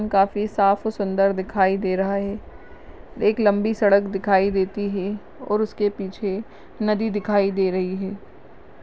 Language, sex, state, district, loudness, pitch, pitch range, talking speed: Hindi, female, Uttarakhand, Uttarkashi, -22 LUFS, 200 Hz, 195-210 Hz, 150 wpm